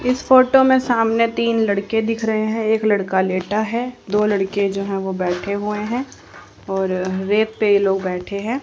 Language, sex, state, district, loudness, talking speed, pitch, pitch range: Hindi, female, Haryana, Charkhi Dadri, -19 LUFS, 195 wpm, 210 Hz, 195-230 Hz